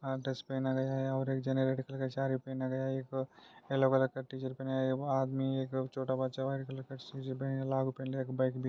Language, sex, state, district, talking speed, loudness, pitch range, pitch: Hindi, male, Maharashtra, Solapur, 170 wpm, -35 LUFS, 130-135 Hz, 130 Hz